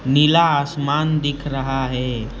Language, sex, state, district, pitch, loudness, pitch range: Hindi, male, West Bengal, Alipurduar, 140 Hz, -19 LUFS, 130-150 Hz